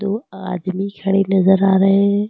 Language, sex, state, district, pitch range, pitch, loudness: Hindi, female, Uttar Pradesh, Lucknow, 190-200 Hz, 195 Hz, -17 LUFS